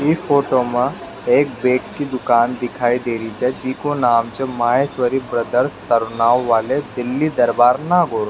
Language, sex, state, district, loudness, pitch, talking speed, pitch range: Rajasthani, male, Rajasthan, Nagaur, -18 LUFS, 125 Hz, 150 wpm, 120-135 Hz